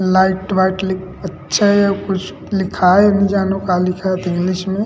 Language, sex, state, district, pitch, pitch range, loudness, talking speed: Chhattisgarhi, male, Chhattisgarh, Rajnandgaon, 190 Hz, 185-195 Hz, -16 LUFS, 150 wpm